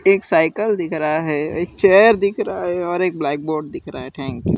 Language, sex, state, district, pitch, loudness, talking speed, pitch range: Hindi, male, Gujarat, Valsad, 160 Hz, -18 LUFS, 250 wpm, 150-190 Hz